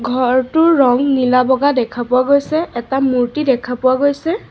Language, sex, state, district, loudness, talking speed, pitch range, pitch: Assamese, female, Assam, Sonitpur, -15 LUFS, 160 wpm, 250-285 Hz, 260 Hz